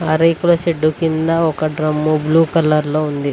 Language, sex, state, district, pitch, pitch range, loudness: Telugu, female, Telangana, Mahabubabad, 155 Hz, 155-165 Hz, -16 LUFS